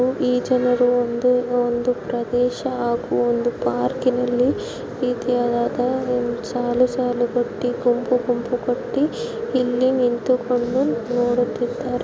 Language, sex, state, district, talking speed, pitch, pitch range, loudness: Kannada, female, Karnataka, Chamarajanagar, 90 wpm, 245 Hz, 240-250 Hz, -21 LUFS